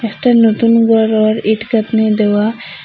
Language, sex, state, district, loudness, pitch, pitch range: Bengali, female, Assam, Hailakandi, -12 LUFS, 220 Hz, 215-230 Hz